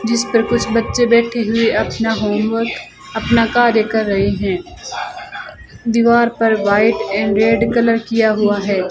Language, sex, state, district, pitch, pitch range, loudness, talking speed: Hindi, female, Rajasthan, Bikaner, 225 Hz, 210-230 Hz, -15 LUFS, 150 wpm